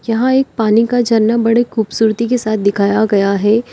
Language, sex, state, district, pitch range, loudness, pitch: Hindi, female, Uttar Pradesh, Lalitpur, 215-235 Hz, -14 LUFS, 225 Hz